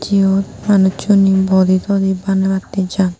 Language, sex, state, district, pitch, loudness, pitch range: Chakma, female, Tripura, Unakoti, 190 Hz, -14 LUFS, 190-195 Hz